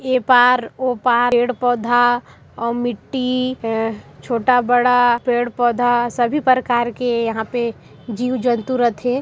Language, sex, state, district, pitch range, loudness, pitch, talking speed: Chhattisgarhi, female, Chhattisgarh, Sarguja, 240-250 Hz, -18 LUFS, 245 Hz, 115 wpm